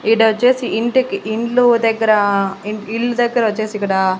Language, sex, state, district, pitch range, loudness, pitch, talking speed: Telugu, female, Andhra Pradesh, Annamaya, 205-235 Hz, -16 LUFS, 220 Hz, 115 wpm